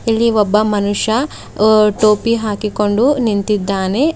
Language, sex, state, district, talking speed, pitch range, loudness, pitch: Kannada, female, Karnataka, Bidar, 70 wpm, 210-230 Hz, -14 LUFS, 215 Hz